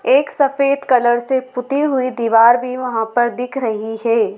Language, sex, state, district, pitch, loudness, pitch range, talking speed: Hindi, female, Madhya Pradesh, Dhar, 250 Hz, -16 LUFS, 230-270 Hz, 180 wpm